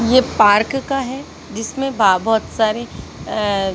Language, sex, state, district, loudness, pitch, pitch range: Hindi, female, Madhya Pradesh, Katni, -17 LUFS, 225 Hz, 210-260 Hz